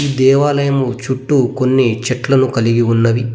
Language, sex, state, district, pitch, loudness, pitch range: Telugu, male, Telangana, Mahabubabad, 130 Hz, -14 LUFS, 120-135 Hz